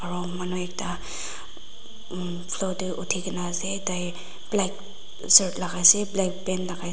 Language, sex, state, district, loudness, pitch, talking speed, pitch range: Nagamese, female, Nagaland, Dimapur, -24 LUFS, 180 Hz, 145 wpm, 180-190 Hz